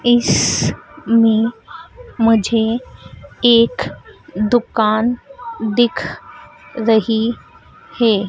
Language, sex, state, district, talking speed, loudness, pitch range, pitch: Hindi, female, Madhya Pradesh, Dhar, 50 wpm, -16 LUFS, 220-240 Hz, 230 Hz